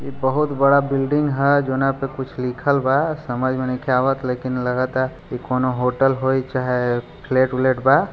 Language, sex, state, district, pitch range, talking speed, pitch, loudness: Hindi, male, Bihar, Gopalganj, 130-140 Hz, 185 wpm, 130 Hz, -20 LUFS